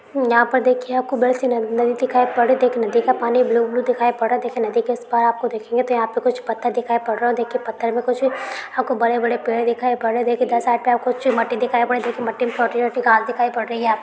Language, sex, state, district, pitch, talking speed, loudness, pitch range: Hindi, female, Uttar Pradesh, Hamirpur, 240 Hz, 285 wpm, -19 LUFS, 235-250 Hz